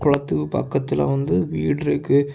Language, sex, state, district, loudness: Tamil, male, Tamil Nadu, Kanyakumari, -21 LUFS